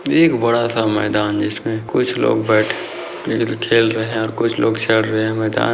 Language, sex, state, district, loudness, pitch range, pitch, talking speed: Hindi, male, Bihar, Bhagalpur, -17 LUFS, 110-115 Hz, 110 Hz, 165 wpm